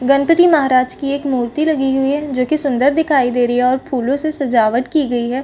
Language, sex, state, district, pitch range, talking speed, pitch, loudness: Hindi, female, Chhattisgarh, Bastar, 250-290 Hz, 220 wpm, 270 Hz, -15 LUFS